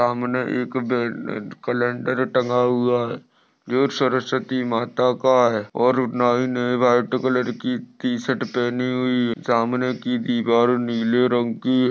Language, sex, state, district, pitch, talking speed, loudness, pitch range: Hindi, male, Maharashtra, Sindhudurg, 125 Hz, 145 wpm, -21 LUFS, 120-130 Hz